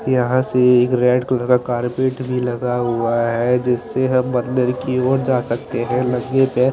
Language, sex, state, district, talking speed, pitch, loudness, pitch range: Hindi, male, Chandigarh, Chandigarh, 185 wpm, 125 Hz, -18 LUFS, 125-130 Hz